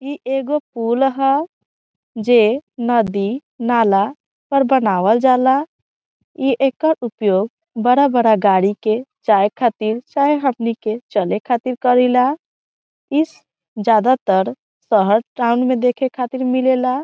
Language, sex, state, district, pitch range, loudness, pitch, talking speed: Bhojpuri, female, Bihar, Saran, 220-270 Hz, -17 LUFS, 245 Hz, 115 wpm